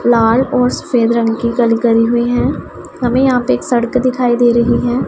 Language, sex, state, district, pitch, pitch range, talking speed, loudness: Hindi, female, Punjab, Pathankot, 240 Hz, 235-250 Hz, 215 wpm, -13 LUFS